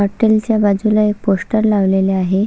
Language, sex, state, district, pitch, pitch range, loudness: Marathi, female, Maharashtra, Solapur, 205 Hz, 195-215 Hz, -15 LUFS